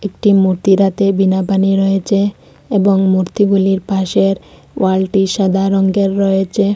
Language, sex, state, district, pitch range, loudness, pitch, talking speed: Bengali, female, Assam, Hailakandi, 190-200 Hz, -14 LUFS, 195 Hz, 105 wpm